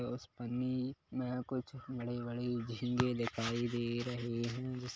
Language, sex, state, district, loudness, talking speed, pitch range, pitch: Hindi, male, Chhattisgarh, Kabirdham, -38 LUFS, 135 wpm, 120-125 Hz, 125 Hz